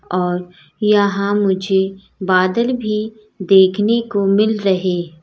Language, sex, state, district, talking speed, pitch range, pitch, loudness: Hindi, female, Uttar Pradesh, Lalitpur, 105 wpm, 185-210 Hz, 195 Hz, -16 LUFS